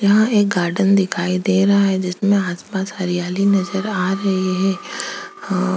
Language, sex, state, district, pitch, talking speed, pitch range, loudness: Hindi, female, Chhattisgarh, Kabirdham, 195 Hz, 165 wpm, 185-200 Hz, -18 LUFS